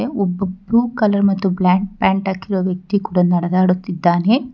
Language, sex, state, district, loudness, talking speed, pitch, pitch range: Kannada, female, Karnataka, Bangalore, -17 LUFS, 130 wpm, 190 Hz, 180-205 Hz